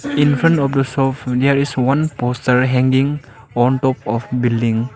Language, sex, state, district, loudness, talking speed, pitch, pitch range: English, male, Arunachal Pradesh, Lower Dibang Valley, -16 LUFS, 170 wpm, 130 Hz, 125-140 Hz